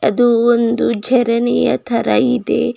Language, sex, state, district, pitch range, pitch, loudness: Kannada, female, Karnataka, Bidar, 230-245 Hz, 240 Hz, -15 LUFS